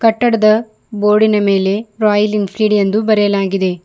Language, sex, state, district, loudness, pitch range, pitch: Kannada, female, Karnataka, Bidar, -14 LUFS, 200-215 Hz, 210 Hz